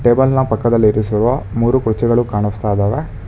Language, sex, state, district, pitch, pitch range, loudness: Kannada, male, Karnataka, Bangalore, 115 Hz, 105-120 Hz, -15 LUFS